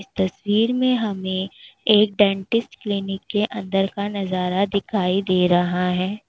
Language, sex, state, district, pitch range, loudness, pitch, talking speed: Hindi, female, Uttar Pradesh, Lalitpur, 190-210 Hz, -21 LUFS, 195 Hz, 145 wpm